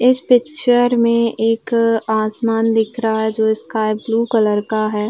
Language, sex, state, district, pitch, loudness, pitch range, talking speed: Hindi, female, Uttar Pradesh, Varanasi, 225 Hz, -16 LUFS, 220-235 Hz, 165 wpm